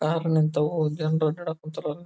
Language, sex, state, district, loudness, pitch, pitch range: Kannada, male, Karnataka, Belgaum, -26 LUFS, 155 Hz, 155-160 Hz